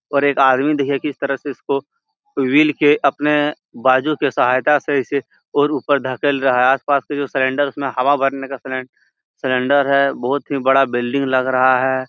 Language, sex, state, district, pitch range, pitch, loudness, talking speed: Hindi, male, Bihar, Jahanabad, 130-145 Hz, 140 Hz, -17 LUFS, 185 wpm